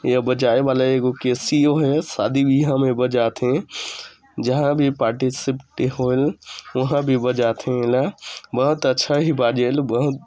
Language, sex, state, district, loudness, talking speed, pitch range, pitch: Chhattisgarhi, male, Chhattisgarh, Sarguja, -20 LUFS, 140 wpm, 125-140 Hz, 130 Hz